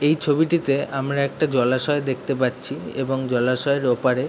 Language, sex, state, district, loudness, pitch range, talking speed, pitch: Bengali, male, West Bengal, Jhargram, -22 LUFS, 130-145 Hz, 140 wpm, 135 Hz